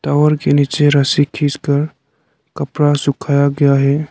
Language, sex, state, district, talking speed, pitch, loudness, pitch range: Hindi, male, Arunachal Pradesh, Lower Dibang Valley, 130 wpm, 145 Hz, -14 LUFS, 140-145 Hz